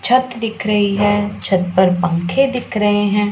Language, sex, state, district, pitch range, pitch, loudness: Hindi, female, Punjab, Pathankot, 190-215 Hz, 205 Hz, -16 LUFS